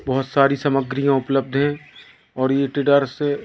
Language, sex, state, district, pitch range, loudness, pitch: Hindi, male, Madhya Pradesh, Katni, 135-140 Hz, -19 LUFS, 140 Hz